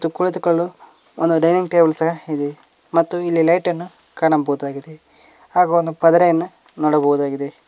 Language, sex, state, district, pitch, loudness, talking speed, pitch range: Kannada, male, Karnataka, Koppal, 165 Hz, -18 LUFS, 110 wpm, 155-175 Hz